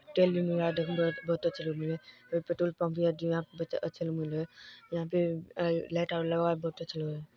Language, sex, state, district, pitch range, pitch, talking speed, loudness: Hindi, male, Bihar, Darbhanga, 165-170 Hz, 170 Hz, 145 wpm, -32 LUFS